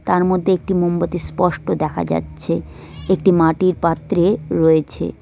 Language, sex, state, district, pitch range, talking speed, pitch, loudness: Bengali, female, West Bengal, Cooch Behar, 160-185 Hz, 125 wpm, 175 Hz, -18 LUFS